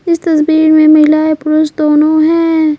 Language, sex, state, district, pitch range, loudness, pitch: Hindi, female, Bihar, Patna, 305-315 Hz, -9 LUFS, 310 Hz